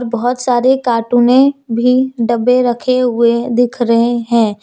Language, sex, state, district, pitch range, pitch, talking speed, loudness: Hindi, female, Jharkhand, Deoghar, 235-250 Hz, 245 Hz, 145 wpm, -13 LUFS